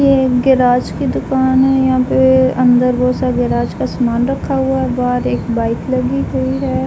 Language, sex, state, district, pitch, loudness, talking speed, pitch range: Hindi, female, Uttar Pradesh, Jalaun, 255 Hz, -14 LUFS, 200 wpm, 245-265 Hz